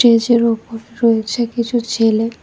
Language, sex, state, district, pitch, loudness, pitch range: Bengali, female, Tripura, West Tripura, 230 Hz, -16 LUFS, 225-235 Hz